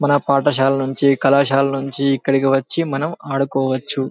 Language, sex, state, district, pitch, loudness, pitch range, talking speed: Telugu, male, Telangana, Karimnagar, 135 Hz, -17 LUFS, 135-140 Hz, 130 wpm